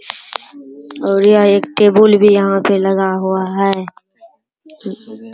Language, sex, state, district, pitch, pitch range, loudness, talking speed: Hindi, male, Bihar, Araria, 200 Hz, 190-210 Hz, -12 LUFS, 125 wpm